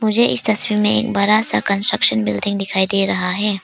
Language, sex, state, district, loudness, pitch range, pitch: Hindi, female, Arunachal Pradesh, Papum Pare, -16 LUFS, 190-215 Hz, 200 Hz